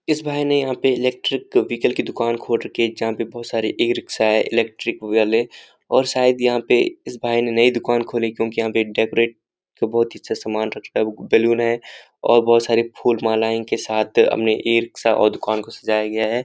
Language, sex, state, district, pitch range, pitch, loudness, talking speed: Hindi, male, Uttarakhand, Uttarkashi, 110-120 Hz, 115 Hz, -19 LUFS, 225 wpm